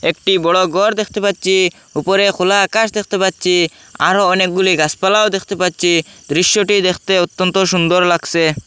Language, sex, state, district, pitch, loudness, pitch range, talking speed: Bengali, male, Assam, Hailakandi, 185 Hz, -14 LUFS, 175-200 Hz, 140 wpm